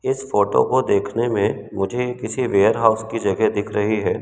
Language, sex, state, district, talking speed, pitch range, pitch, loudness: Hindi, male, Madhya Pradesh, Umaria, 200 wpm, 110-125 Hz, 115 Hz, -20 LUFS